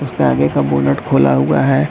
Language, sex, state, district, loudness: Hindi, male, Uttar Pradesh, Jalaun, -14 LUFS